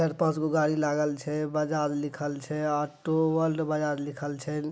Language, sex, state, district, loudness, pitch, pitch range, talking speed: Maithili, male, Bihar, Madhepura, -28 LUFS, 150 Hz, 145-155 Hz, 165 wpm